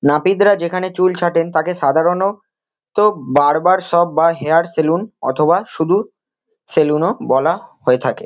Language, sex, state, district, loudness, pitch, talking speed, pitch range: Bengali, male, West Bengal, Kolkata, -16 LUFS, 170 Hz, 140 wpm, 155-185 Hz